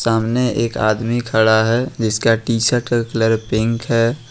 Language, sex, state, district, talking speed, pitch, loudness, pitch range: Hindi, male, Jharkhand, Ranchi, 165 wpm, 115 Hz, -17 LUFS, 110-120 Hz